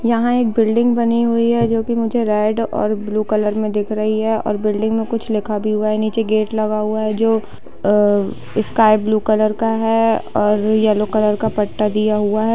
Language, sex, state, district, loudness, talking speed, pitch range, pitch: Hindi, female, Bihar, Darbhanga, -17 LUFS, 210 wpm, 210-225 Hz, 215 Hz